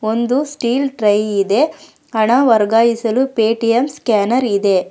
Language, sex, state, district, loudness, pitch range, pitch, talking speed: Kannada, female, Karnataka, Bangalore, -15 LUFS, 215-260 Hz, 230 Hz, 110 wpm